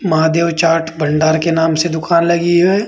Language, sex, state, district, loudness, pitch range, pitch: Hindi, male, Uttar Pradesh, Saharanpur, -14 LUFS, 160-170 Hz, 165 Hz